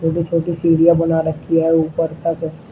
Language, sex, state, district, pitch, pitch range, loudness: Hindi, male, Uttar Pradesh, Shamli, 165 Hz, 160-170 Hz, -17 LUFS